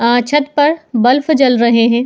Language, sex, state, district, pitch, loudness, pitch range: Hindi, female, Uttar Pradesh, Muzaffarnagar, 250 Hz, -12 LUFS, 235-295 Hz